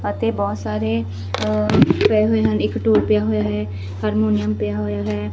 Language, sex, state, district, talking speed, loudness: Punjabi, female, Punjab, Fazilka, 160 wpm, -19 LUFS